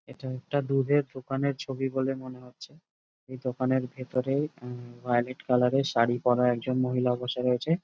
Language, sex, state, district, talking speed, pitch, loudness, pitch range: Bengali, male, West Bengal, Jhargram, 155 wpm, 130 Hz, -28 LUFS, 125-135 Hz